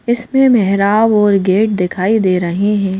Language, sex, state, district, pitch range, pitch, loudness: Hindi, female, Madhya Pradesh, Bhopal, 190-220 Hz, 205 Hz, -13 LUFS